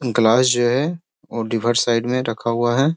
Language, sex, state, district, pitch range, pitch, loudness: Hindi, male, Bihar, Sitamarhi, 115-130 Hz, 120 Hz, -19 LUFS